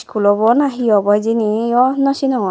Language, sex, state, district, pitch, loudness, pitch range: Chakma, female, Tripura, West Tripura, 230 Hz, -15 LUFS, 210-260 Hz